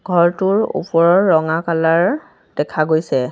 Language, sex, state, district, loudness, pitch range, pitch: Assamese, female, Assam, Sonitpur, -16 LUFS, 160-185 Hz, 170 Hz